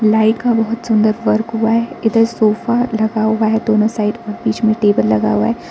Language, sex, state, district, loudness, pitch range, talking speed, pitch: Hindi, female, Arunachal Pradesh, Lower Dibang Valley, -15 LUFS, 215-225 Hz, 220 wpm, 220 Hz